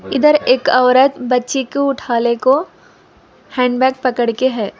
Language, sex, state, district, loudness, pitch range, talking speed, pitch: Hindi, female, Telangana, Hyderabad, -15 LUFS, 245-270 Hz, 165 wpm, 255 Hz